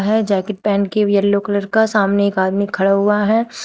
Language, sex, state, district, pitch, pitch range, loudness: Hindi, female, Uttar Pradesh, Shamli, 200 Hz, 200-210 Hz, -16 LUFS